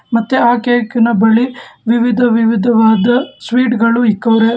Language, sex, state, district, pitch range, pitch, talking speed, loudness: Kannada, male, Karnataka, Bangalore, 225-245 Hz, 235 Hz, 130 wpm, -12 LUFS